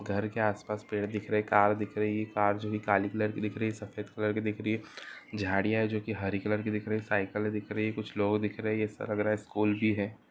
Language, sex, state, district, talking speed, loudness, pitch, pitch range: Hindi, male, Uttar Pradesh, Deoria, 290 wpm, -31 LUFS, 105 Hz, 105-110 Hz